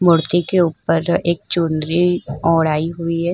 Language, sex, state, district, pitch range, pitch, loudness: Hindi, female, Uttar Pradesh, Budaun, 165-175 Hz, 170 Hz, -18 LUFS